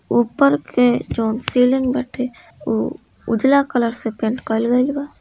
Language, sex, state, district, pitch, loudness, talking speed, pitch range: Hindi, female, Bihar, East Champaran, 250 Hz, -19 LUFS, 140 wpm, 230-265 Hz